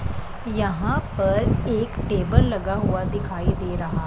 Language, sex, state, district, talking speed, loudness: Hindi, female, Punjab, Pathankot, 130 wpm, -23 LUFS